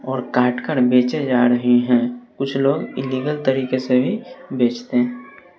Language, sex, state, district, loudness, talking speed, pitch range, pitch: Hindi, male, Bihar, West Champaran, -19 LUFS, 150 wpm, 125-150 Hz, 130 Hz